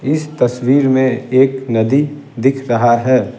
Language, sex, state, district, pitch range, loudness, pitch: Hindi, male, Bihar, Patna, 125-135 Hz, -14 LUFS, 130 Hz